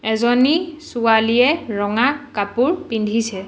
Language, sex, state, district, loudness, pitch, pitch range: Assamese, female, Assam, Sonitpur, -18 LUFS, 235 Hz, 220-290 Hz